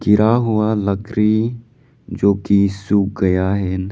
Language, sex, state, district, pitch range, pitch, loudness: Hindi, male, Arunachal Pradesh, Lower Dibang Valley, 100-110 Hz, 105 Hz, -17 LUFS